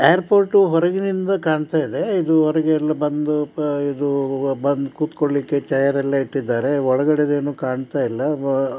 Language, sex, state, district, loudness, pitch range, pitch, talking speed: Kannada, male, Karnataka, Dakshina Kannada, -19 LUFS, 140-155 Hz, 145 Hz, 145 wpm